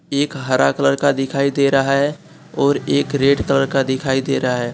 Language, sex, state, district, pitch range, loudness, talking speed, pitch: Hindi, male, Jharkhand, Deoghar, 130-140 Hz, -17 LUFS, 215 wpm, 135 Hz